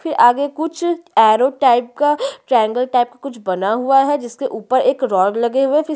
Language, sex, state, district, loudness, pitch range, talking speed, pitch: Hindi, female, Chhattisgarh, Sukma, -16 LUFS, 240-290 Hz, 190 wpm, 260 Hz